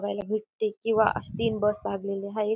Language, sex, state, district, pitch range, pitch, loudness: Marathi, female, Maharashtra, Dhule, 205-220 Hz, 215 Hz, -28 LUFS